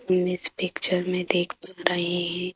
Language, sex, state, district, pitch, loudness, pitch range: Hindi, female, Madhya Pradesh, Bhopal, 180 Hz, -22 LUFS, 175-180 Hz